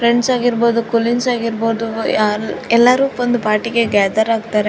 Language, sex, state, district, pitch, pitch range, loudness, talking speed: Kannada, female, Karnataka, Raichur, 230 Hz, 220-240 Hz, -16 LUFS, 140 wpm